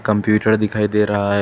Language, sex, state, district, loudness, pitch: Hindi, male, Uttar Pradesh, Etah, -17 LUFS, 105 Hz